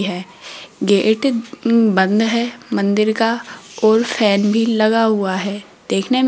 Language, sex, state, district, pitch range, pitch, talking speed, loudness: Hindi, female, Rajasthan, Jaipur, 200-230 Hz, 220 Hz, 135 wpm, -17 LUFS